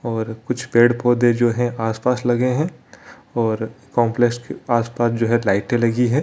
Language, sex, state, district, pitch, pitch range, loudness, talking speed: Hindi, male, Bihar, Araria, 120 Hz, 115-120 Hz, -19 LUFS, 165 wpm